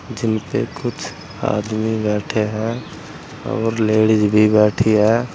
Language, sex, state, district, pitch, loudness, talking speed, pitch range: Hindi, male, Uttar Pradesh, Saharanpur, 110 Hz, -18 LUFS, 125 wpm, 105-115 Hz